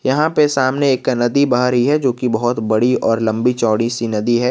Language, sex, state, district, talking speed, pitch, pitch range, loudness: Hindi, male, Jharkhand, Garhwa, 225 wpm, 125 Hz, 115-130 Hz, -16 LUFS